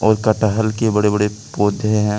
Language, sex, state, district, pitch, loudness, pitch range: Hindi, male, Jharkhand, Deoghar, 105 Hz, -17 LUFS, 105-110 Hz